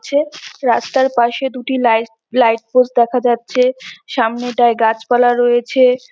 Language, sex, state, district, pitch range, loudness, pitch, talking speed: Bengali, female, West Bengal, North 24 Parganas, 235-255 Hz, -15 LUFS, 245 Hz, 120 wpm